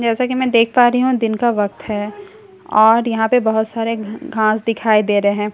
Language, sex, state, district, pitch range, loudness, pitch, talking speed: Hindi, female, Bihar, Katihar, 215-245 Hz, -16 LUFS, 225 Hz, 225 wpm